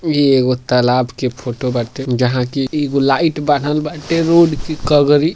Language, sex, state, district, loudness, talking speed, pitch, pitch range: Bhojpuri, male, Uttar Pradesh, Deoria, -15 LUFS, 170 wpm, 140 Hz, 125-150 Hz